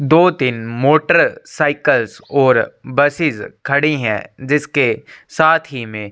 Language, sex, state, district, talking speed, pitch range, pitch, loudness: Hindi, male, Chhattisgarh, Korba, 120 wpm, 130-160 Hz, 140 Hz, -16 LUFS